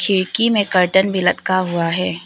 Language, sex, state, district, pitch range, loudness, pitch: Hindi, female, Arunachal Pradesh, Papum Pare, 180-195 Hz, -17 LUFS, 185 Hz